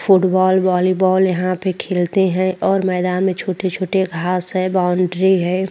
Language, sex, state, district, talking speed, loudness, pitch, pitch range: Hindi, female, Goa, North and South Goa, 145 wpm, -17 LUFS, 185 Hz, 180-190 Hz